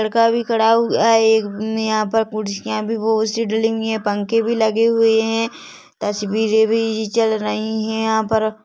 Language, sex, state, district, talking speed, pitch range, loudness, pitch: Hindi, female, Chhattisgarh, Bilaspur, 195 wpm, 220-225 Hz, -18 LUFS, 220 Hz